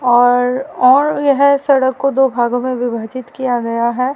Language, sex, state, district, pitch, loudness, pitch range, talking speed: Hindi, female, Haryana, Rohtak, 255 Hz, -14 LUFS, 245-275 Hz, 175 wpm